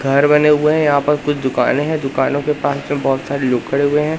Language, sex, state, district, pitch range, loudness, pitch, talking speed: Hindi, male, Madhya Pradesh, Katni, 135-150 Hz, -16 LUFS, 145 Hz, 270 wpm